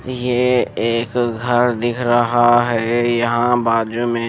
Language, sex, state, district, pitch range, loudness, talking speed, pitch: Hindi, male, Bihar, Patna, 115-120 Hz, -17 LUFS, 125 wpm, 120 Hz